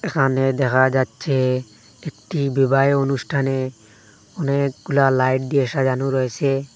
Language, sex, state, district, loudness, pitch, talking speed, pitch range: Bengali, male, Assam, Hailakandi, -20 LUFS, 135 Hz, 100 wpm, 130-140 Hz